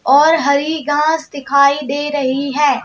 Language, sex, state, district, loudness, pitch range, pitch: Hindi, female, Madhya Pradesh, Bhopal, -15 LUFS, 280-305 Hz, 290 Hz